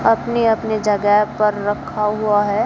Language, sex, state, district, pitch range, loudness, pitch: Hindi, female, Haryana, Jhajjar, 205-220 Hz, -18 LUFS, 210 Hz